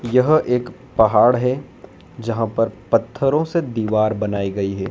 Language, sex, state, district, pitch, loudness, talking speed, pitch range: Hindi, male, Madhya Pradesh, Dhar, 115 Hz, -19 LUFS, 145 wpm, 110-125 Hz